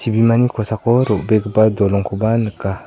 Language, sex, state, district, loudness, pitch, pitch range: Garo, male, Meghalaya, South Garo Hills, -16 LUFS, 110 Hz, 100-115 Hz